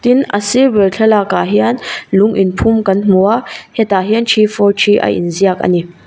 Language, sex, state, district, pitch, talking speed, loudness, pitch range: Mizo, female, Mizoram, Aizawl, 205 Hz, 215 wpm, -12 LUFS, 195-225 Hz